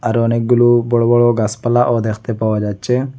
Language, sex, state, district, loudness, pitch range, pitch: Bengali, male, Assam, Hailakandi, -15 LUFS, 110-120 Hz, 120 Hz